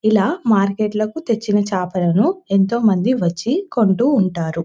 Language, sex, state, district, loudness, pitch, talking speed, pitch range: Telugu, female, Telangana, Nalgonda, -17 LUFS, 210 Hz, 130 wpm, 190-235 Hz